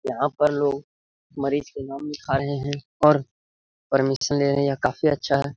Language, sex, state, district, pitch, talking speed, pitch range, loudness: Hindi, male, Bihar, Lakhisarai, 140 Hz, 195 wpm, 135-145 Hz, -23 LUFS